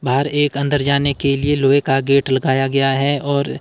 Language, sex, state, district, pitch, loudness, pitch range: Hindi, male, Himachal Pradesh, Shimla, 140 Hz, -17 LUFS, 135-145 Hz